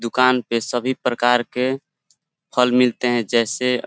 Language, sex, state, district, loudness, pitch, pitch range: Hindi, male, Uttar Pradesh, Deoria, -19 LUFS, 125 Hz, 120-125 Hz